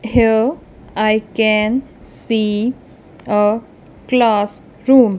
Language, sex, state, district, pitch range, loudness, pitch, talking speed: English, female, Punjab, Kapurthala, 215-240 Hz, -16 LUFS, 220 Hz, 80 wpm